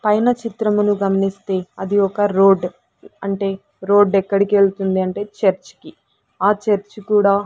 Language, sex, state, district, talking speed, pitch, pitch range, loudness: Telugu, female, Andhra Pradesh, Sri Satya Sai, 130 wpm, 200 Hz, 195-205 Hz, -18 LUFS